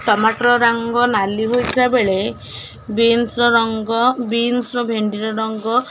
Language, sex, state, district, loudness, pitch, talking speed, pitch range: Odia, female, Odisha, Khordha, -17 LUFS, 230 Hz, 140 wpm, 215-240 Hz